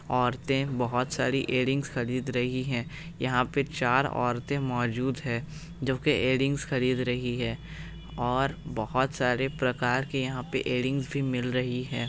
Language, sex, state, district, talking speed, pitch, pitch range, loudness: Hindi, male, Bihar, Araria, 155 wpm, 130 Hz, 125-140 Hz, -28 LUFS